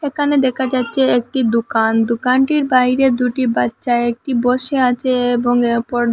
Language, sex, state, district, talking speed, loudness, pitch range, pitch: Bengali, female, Assam, Hailakandi, 135 wpm, -15 LUFS, 240-260 Hz, 250 Hz